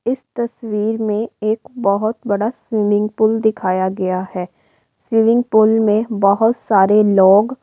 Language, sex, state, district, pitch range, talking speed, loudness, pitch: Hindi, female, Uttar Pradesh, Varanasi, 200-225 Hz, 140 wpm, -16 LUFS, 215 Hz